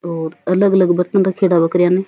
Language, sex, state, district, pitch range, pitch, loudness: Rajasthani, female, Rajasthan, Churu, 175-190 Hz, 180 Hz, -15 LUFS